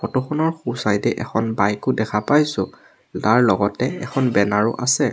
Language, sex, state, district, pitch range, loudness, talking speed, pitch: Assamese, male, Assam, Sonitpur, 105-130 Hz, -20 LUFS, 185 wpm, 115 Hz